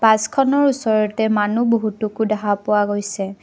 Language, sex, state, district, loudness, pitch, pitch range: Assamese, female, Assam, Kamrup Metropolitan, -18 LUFS, 215 Hz, 205-230 Hz